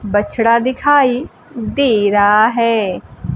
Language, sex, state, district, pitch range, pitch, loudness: Hindi, female, Bihar, Kaimur, 205-255 Hz, 230 Hz, -14 LUFS